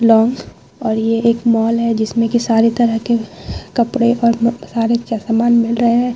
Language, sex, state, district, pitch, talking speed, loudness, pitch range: Hindi, female, Bihar, Vaishali, 230 Hz, 175 wpm, -15 LUFS, 225-235 Hz